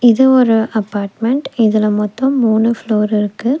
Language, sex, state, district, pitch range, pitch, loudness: Tamil, female, Tamil Nadu, Nilgiris, 215-250 Hz, 225 Hz, -14 LUFS